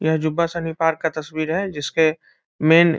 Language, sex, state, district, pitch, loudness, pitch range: Hindi, male, Bihar, Muzaffarpur, 160 Hz, -21 LUFS, 155-165 Hz